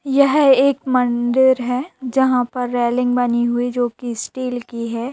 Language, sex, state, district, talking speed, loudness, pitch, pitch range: Hindi, female, Bihar, Sitamarhi, 165 wpm, -18 LUFS, 250 Hz, 240-260 Hz